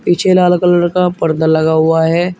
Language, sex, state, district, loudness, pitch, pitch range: Hindi, male, Uttar Pradesh, Shamli, -12 LUFS, 175 Hz, 160-180 Hz